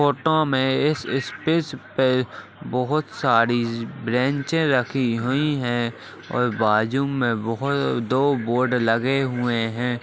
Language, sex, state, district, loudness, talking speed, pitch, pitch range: Hindi, male, Uttarakhand, Tehri Garhwal, -22 LUFS, 115 wpm, 130 Hz, 120-140 Hz